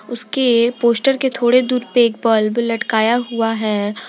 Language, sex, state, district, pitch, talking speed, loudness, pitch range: Hindi, female, Jharkhand, Garhwa, 235 Hz, 160 wpm, -16 LUFS, 225-245 Hz